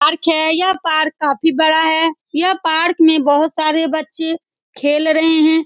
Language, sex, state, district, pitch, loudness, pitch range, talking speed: Hindi, female, Bihar, Saran, 320 Hz, -12 LUFS, 310-325 Hz, 180 wpm